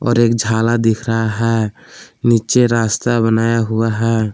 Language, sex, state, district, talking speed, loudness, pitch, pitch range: Hindi, male, Jharkhand, Palamu, 150 wpm, -15 LUFS, 115 Hz, 110-115 Hz